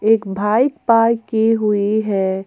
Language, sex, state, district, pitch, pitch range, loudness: Hindi, female, Jharkhand, Garhwa, 220 Hz, 200-225 Hz, -16 LUFS